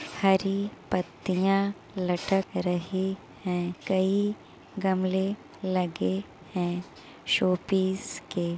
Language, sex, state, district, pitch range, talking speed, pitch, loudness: Hindi, female, Uttar Pradesh, Muzaffarnagar, 180-195 Hz, 85 wpm, 185 Hz, -28 LUFS